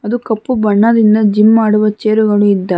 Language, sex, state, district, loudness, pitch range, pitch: Kannada, female, Karnataka, Bangalore, -11 LUFS, 210-220 Hz, 215 Hz